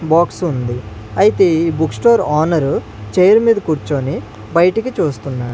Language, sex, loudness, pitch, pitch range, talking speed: Telugu, male, -15 LUFS, 160 Hz, 125-180 Hz, 130 wpm